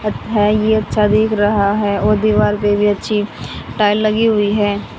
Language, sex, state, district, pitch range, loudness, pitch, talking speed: Hindi, female, Haryana, Charkhi Dadri, 205-215 Hz, -15 LUFS, 210 Hz, 190 wpm